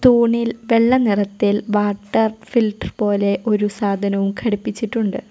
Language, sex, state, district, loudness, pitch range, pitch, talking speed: Malayalam, female, Kerala, Kollam, -19 LUFS, 205-230 Hz, 215 Hz, 100 wpm